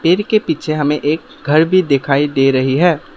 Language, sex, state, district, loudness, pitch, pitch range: Hindi, male, Assam, Sonitpur, -14 LUFS, 150 Hz, 140-170 Hz